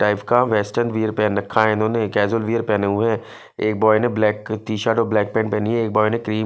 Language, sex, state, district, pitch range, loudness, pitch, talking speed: Hindi, male, Punjab, Fazilka, 105-115 Hz, -19 LUFS, 110 Hz, 215 wpm